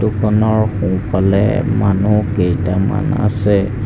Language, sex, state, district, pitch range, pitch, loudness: Assamese, male, Assam, Sonitpur, 95-110 Hz, 105 Hz, -15 LUFS